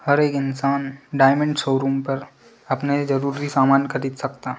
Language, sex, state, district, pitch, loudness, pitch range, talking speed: Hindi, male, Madhya Pradesh, Bhopal, 140 Hz, -21 LUFS, 135-145 Hz, 145 wpm